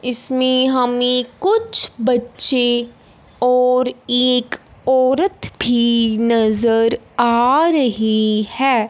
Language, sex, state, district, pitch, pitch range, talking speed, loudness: Hindi, male, Punjab, Fazilka, 250 Hz, 235-255 Hz, 80 wpm, -16 LUFS